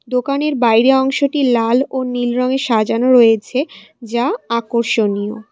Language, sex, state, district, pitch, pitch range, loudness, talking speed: Bengali, female, West Bengal, Cooch Behar, 245 Hz, 230-265 Hz, -15 LUFS, 120 wpm